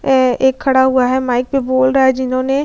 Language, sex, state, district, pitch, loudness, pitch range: Hindi, female, Bihar, Vaishali, 260 Hz, -14 LUFS, 255-265 Hz